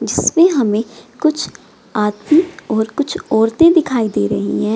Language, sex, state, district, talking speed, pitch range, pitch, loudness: Hindi, female, Bihar, Gaya, 150 wpm, 210-315 Hz, 230 Hz, -15 LUFS